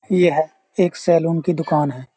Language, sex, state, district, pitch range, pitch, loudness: Hindi, male, Uttar Pradesh, Jyotiba Phule Nagar, 155-180 Hz, 165 Hz, -19 LUFS